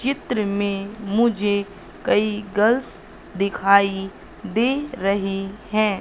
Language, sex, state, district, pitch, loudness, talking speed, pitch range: Hindi, female, Madhya Pradesh, Katni, 205 Hz, -21 LUFS, 90 wpm, 200-220 Hz